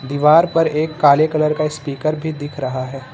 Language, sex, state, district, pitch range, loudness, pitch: Hindi, male, Uttar Pradesh, Lucknow, 140-155 Hz, -17 LUFS, 150 Hz